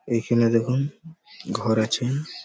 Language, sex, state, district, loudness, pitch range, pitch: Bengali, male, West Bengal, Malda, -23 LUFS, 115-140 Hz, 120 Hz